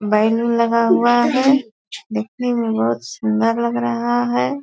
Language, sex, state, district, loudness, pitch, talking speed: Hindi, female, Bihar, Purnia, -18 LUFS, 220 Hz, 155 wpm